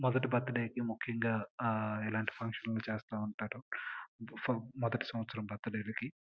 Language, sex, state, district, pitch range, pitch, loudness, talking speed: Telugu, male, Andhra Pradesh, Srikakulam, 110-120 Hz, 115 Hz, -38 LUFS, 135 wpm